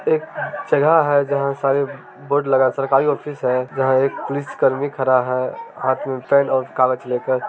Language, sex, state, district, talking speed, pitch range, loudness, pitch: Maithili, male, Bihar, Samastipur, 200 wpm, 130-140 Hz, -19 LUFS, 135 Hz